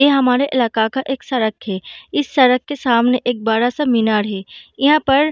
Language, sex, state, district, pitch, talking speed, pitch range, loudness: Hindi, female, Bihar, Darbhanga, 250 Hz, 235 wpm, 225-275 Hz, -17 LUFS